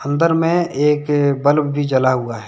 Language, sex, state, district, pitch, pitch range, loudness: Hindi, male, Jharkhand, Deoghar, 145 Hz, 135-150 Hz, -16 LUFS